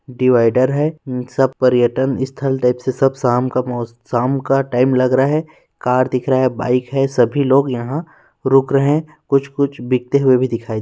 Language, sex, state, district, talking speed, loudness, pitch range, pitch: Hindi, male, Chhattisgarh, Rajnandgaon, 210 wpm, -17 LUFS, 125-135 Hz, 130 Hz